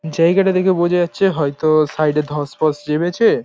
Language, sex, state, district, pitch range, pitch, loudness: Bengali, male, West Bengal, Paschim Medinipur, 150-180 Hz, 155 Hz, -16 LUFS